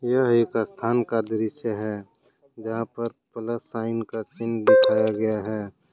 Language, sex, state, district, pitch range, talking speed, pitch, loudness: Hindi, male, Jharkhand, Deoghar, 110-115 Hz, 150 wpm, 115 Hz, -24 LUFS